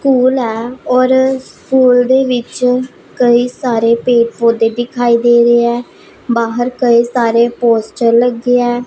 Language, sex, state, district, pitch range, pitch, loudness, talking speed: Punjabi, female, Punjab, Pathankot, 235-250 Hz, 240 Hz, -12 LUFS, 135 wpm